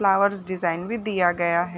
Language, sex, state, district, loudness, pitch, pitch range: Hindi, female, Chhattisgarh, Bilaspur, -23 LUFS, 185 Hz, 175-200 Hz